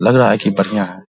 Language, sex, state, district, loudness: Hindi, male, Bihar, Vaishali, -15 LUFS